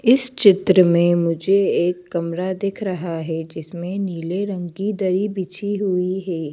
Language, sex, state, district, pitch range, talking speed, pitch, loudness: Hindi, female, Madhya Pradesh, Bhopal, 175-200 Hz, 155 wpm, 185 Hz, -20 LUFS